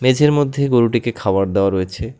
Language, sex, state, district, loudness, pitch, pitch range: Bengali, male, West Bengal, Alipurduar, -17 LUFS, 120 Hz, 100-130 Hz